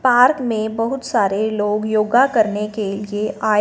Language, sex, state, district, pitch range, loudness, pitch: Hindi, female, Punjab, Fazilka, 210-240 Hz, -18 LUFS, 215 Hz